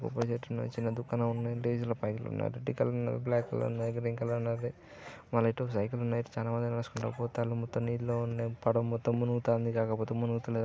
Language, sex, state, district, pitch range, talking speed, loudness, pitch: Telugu, male, Andhra Pradesh, Srikakulam, 115-120 Hz, 165 wpm, -33 LUFS, 115 Hz